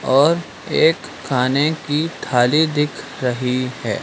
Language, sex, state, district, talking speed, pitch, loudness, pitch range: Hindi, male, Madhya Pradesh, Dhar, 120 wpm, 145 Hz, -19 LUFS, 125-160 Hz